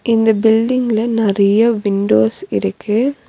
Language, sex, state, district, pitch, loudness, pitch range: Tamil, female, Tamil Nadu, Nilgiris, 220 Hz, -15 LUFS, 200-230 Hz